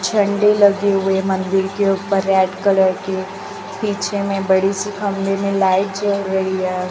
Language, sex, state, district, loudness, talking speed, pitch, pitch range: Hindi, male, Chhattisgarh, Raipur, -17 LUFS, 175 wpm, 195 Hz, 190-200 Hz